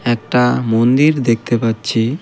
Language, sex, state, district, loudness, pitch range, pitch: Bengali, male, West Bengal, Cooch Behar, -15 LUFS, 115-125 Hz, 120 Hz